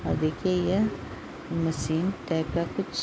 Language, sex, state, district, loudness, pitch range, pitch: Hindi, female, Uttar Pradesh, Deoria, -28 LUFS, 160-185 Hz, 165 Hz